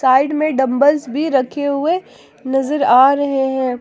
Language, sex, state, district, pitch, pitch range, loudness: Hindi, female, Jharkhand, Palamu, 275 Hz, 265-290 Hz, -16 LUFS